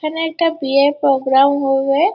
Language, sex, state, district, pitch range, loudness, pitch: Bengali, female, West Bengal, Purulia, 275-320 Hz, -15 LUFS, 280 Hz